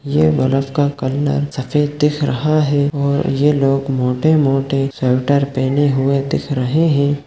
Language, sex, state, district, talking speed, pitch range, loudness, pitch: Hindi, male, Chhattisgarh, Sukma, 150 wpm, 135-145 Hz, -16 LUFS, 140 Hz